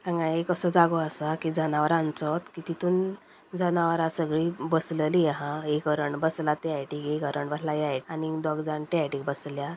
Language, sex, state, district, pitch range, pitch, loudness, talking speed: Konkani, female, Goa, North and South Goa, 150-165 Hz, 160 Hz, -28 LUFS, 160 wpm